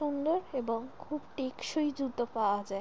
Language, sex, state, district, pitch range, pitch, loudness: Bengali, female, West Bengal, Jalpaiguri, 230-295 Hz, 260 Hz, -34 LUFS